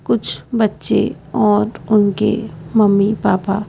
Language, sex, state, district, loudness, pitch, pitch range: Hindi, female, Madhya Pradesh, Bhopal, -16 LUFS, 210 Hz, 200-215 Hz